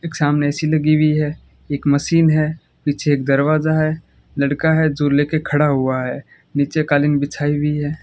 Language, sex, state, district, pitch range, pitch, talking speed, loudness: Hindi, male, Rajasthan, Bikaner, 145-155 Hz, 150 Hz, 195 wpm, -18 LUFS